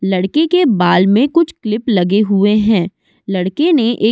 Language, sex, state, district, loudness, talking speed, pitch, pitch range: Hindi, female, Uttar Pradesh, Budaun, -13 LUFS, 190 wpm, 215 Hz, 190-255 Hz